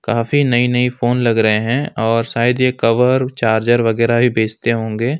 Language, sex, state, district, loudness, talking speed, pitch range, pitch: Hindi, male, West Bengal, Alipurduar, -15 LUFS, 185 wpm, 115-125 Hz, 120 Hz